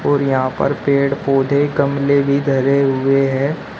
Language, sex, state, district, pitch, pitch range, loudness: Hindi, male, Uttar Pradesh, Shamli, 140 Hz, 135-140 Hz, -16 LUFS